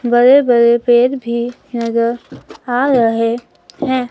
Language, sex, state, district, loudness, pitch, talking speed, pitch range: Hindi, female, Himachal Pradesh, Shimla, -14 LUFS, 240 Hz, 115 wpm, 235-255 Hz